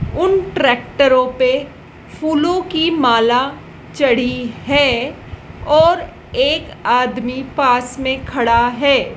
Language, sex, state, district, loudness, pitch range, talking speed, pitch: Hindi, female, Madhya Pradesh, Dhar, -15 LUFS, 245-310 Hz, 100 wpm, 265 Hz